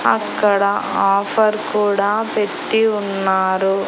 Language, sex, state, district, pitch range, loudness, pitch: Telugu, female, Andhra Pradesh, Annamaya, 195-215 Hz, -17 LUFS, 205 Hz